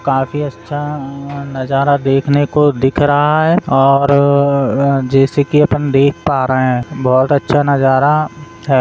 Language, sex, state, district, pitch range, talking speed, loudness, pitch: Hindi, male, Rajasthan, Churu, 135-145 Hz, 135 wpm, -13 LUFS, 140 Hz